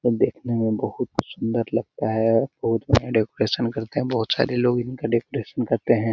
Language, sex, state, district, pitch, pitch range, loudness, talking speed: Hindi, male, Bihar, Lakhisarai, 115 Hz, 115-120 Hz, -23 LUFS, 195 wpm